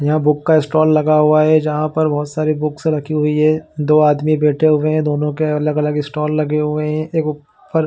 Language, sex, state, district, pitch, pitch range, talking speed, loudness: Hindi, male, Chhattisgarh, Bilaspur, 150 Hz, 150-155 Hz, 230 wpm, -16 LUFS